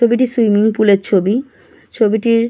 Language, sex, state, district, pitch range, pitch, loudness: Bengali, female, West Bengal, Kolkata, 210-235 Hz, 220 Hz, -14 LUFS